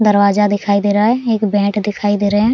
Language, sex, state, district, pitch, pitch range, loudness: Hindi, female, Bihar, Araria, 205 Hz, 205-210 Hz, -15 LUFS